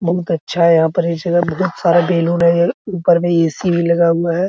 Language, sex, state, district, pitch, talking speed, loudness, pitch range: Hindi, male, Bihar, Araria, 170 Hz, 175 wpm, -15 LUFS, 170-175 Hz